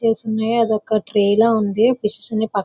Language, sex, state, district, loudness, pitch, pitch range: Telugu, female, Andhra Pradesh, Visakhapatnam, -18 LUFS, 220 Hz, 210-225 Hz